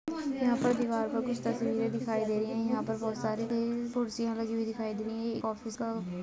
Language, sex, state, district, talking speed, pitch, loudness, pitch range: Hindi, female, Jharkhand, Jamtara, 210 wpm, 230 Hz, -32 LUFS, 220-235 Hz